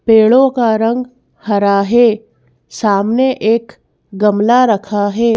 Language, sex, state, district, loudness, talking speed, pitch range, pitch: Hindi, female, Madhya Pradesh, Bhopal, -13 LUFS, 100 wpm, 205-235 Hz, 220 Hz